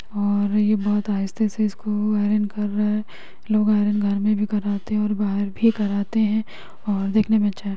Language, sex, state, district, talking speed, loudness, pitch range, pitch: Magahi, female, Bihar, Gaya, 210 wpm, -22 LUFS, 205-215 Hz, 210 Hz